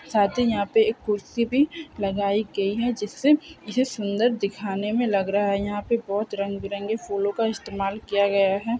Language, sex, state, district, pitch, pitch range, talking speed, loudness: Hindi, female, Chhattisgarh, Bilaspur, 210 Hz, 200-235 Hz, 195 wpm, -24 LUFS